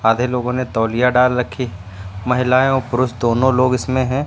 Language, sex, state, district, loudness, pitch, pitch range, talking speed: Hindi, male, Uttar Pradesh, Lucknow, -17 LUFS, 125 Hz, 115-130 Hz, 180 wpm